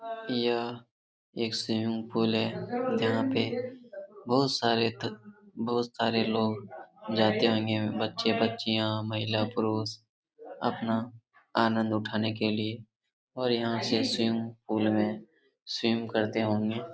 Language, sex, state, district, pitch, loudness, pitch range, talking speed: Hindi, male, Jharkhand, Jamtara, 115 Hz, -29 LUFS, 110-120 Hz, 120 wpm